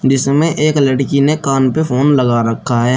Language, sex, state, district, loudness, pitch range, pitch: Hindi, male, Uttar Pradesh, Shamli, -13 LUFS, 130-145 Hz, 135 Hz